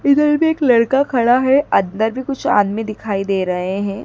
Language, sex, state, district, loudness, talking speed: Hindi, female, Madhya Pradesh, Dhar, -16 LUFS, 205 wpm